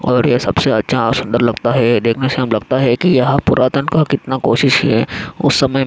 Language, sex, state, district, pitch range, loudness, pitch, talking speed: Hindi, male, Maharashtra, Aurangabad, 120-140 Hz, -14 LUFS, 130 Hz, 225 wpm